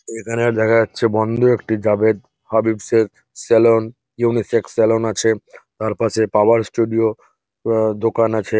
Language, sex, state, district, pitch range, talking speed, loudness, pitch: Bengali, male, West Bengal, North 24 Parganas, 110-115 Hz, 130 wpm, -17 LUFS, 110 Hz